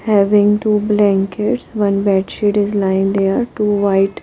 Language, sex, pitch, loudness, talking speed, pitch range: English, female, 205 Hz, -15 LUFS, 170 wpm, 195-210 Hz